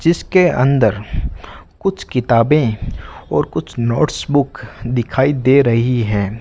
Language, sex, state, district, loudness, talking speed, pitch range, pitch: Hindi, male, Rajasthan, Bikaner, -16 LUFS, 110 wpm, 105-140 Hz, 120 Hz